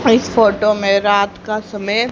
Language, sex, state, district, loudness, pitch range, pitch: Hindi, female, Haryana, Rohtak, -15 LUFS, 200-225 Hz, 210 Hz